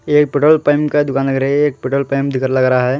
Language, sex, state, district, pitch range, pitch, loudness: Hindi, male, Haryana, Charkhi Dadri, 130-150 Hz, 140 Hz, -15 LUFS